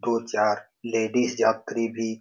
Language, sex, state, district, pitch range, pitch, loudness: Hindi, male, Bihar, Saran, 110-115 Hz, 115 Hz, -25 LUFS